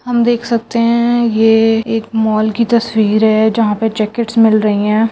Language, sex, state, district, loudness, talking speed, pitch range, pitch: Chhattisgarhi, female, Chhattisgarh, Rajnandgaon, -13 LUFS, 185 wpm, 220-235 Hz, 225 Hz